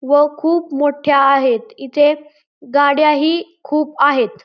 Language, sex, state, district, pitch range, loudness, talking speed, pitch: Marathi, male, Maharashtra, Pune, 280-305 Hz, -15 LUFS, 120 wpm, 295 Hz